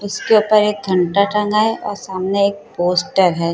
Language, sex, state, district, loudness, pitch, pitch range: Hindi, female, Uttar Pradesh, Hamirpur, -16 LUFS, 200 Hz, 185-210 Hz